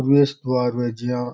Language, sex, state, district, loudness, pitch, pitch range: Rajasthani, male, Rajasthan, Churu, -21 LUFS, 125 Hz, 120-135 Hz